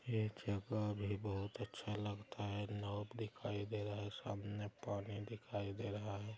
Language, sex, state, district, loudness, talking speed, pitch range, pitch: Hindi, male, Bihar, Araria, -45 LUFS, 170 wpm, 100-105 Hz, 105 Hz